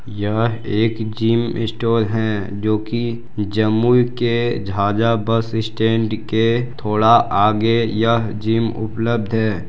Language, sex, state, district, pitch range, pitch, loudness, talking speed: Hindi, male, Bihar, Jamui, 110-115 Hz, 110 Hz, -18 LUFS, 120 wpm